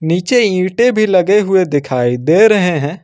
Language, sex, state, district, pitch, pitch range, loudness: Hindi, male, Jharkhand, Ranchi, 185 Hz, 155-210 Hz, -12 LUFS